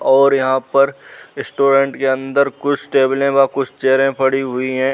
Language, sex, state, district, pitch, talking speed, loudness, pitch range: Hindi, male, Uttar Pradesh, Muzaffarnagar, 135 Hz, 160 wpm, -16 LUFS, 130-140 Hz